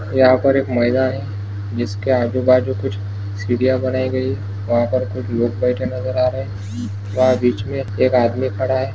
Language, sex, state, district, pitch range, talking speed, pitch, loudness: Hindi, male, Bihar, Purnia, 100-130 Hz, 195 wpm, 120 Hz, -19 LUFS